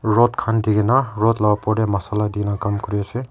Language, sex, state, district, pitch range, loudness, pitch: Nagamese, male, Nagaland, Kohima, 105-115 Hz, -19 LUFS, 105 Hz